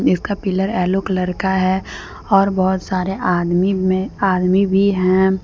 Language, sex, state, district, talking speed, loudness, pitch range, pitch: Hindi, female, Jharkhand, Deoghar, 155 wpm, -17 LUFS, 185-195 Hz, 190 Hz